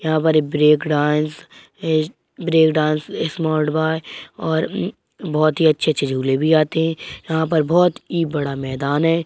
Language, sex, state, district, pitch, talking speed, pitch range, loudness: Hindi, male, Uttar Pradesh, Hamirpur, 155 Hz, 160 wpm, 150-160 Hz, -19 LUFS